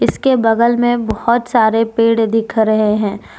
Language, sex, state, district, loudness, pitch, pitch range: Hindi, female, Jharkhand, Deoghar, -14 LUFS, 225 Hz, 220-235 Hz